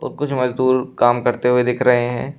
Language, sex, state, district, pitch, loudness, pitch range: Hindi, male, Uttar Pradesh, Shamli, 125 Hz, -17 LUFS, 120-130 Hz